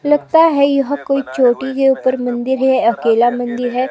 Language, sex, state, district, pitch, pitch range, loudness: Hindi, female, Himachal Pradesh, Shimla, 260 Hz, 245-275 Hz, -15 LUFS